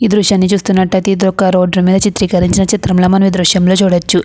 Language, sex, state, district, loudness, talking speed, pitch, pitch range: Telugu, female, Andhra Pradesh, Anantapur, -11 LUFS, 170 wpm, 190 Hz, 180-195 Hz